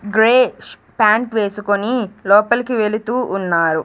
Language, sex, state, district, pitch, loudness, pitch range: Telugu, female, Andhra Pradesh, Sri Satya Sai, 215 Hz, -16 LUFS, 205-235 Hz